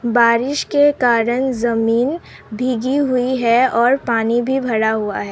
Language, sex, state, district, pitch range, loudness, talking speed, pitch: Hindi, female, Assam, Sonitpur, 230-260 Hz, -16 LUFS, 145 wpm, 240 Hz